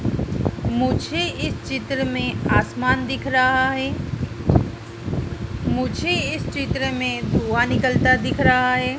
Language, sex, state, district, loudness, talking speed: Hindi, female, Madhya Pradesh, Dhar, -21 LUFS, 115 wpm